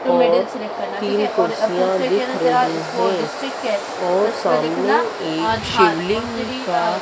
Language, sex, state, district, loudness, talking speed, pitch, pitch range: Hindi, female, Madhya Pradesh, Dhar, -19 LUFS, 95 wpm, 220 Hz, 165-250 Hz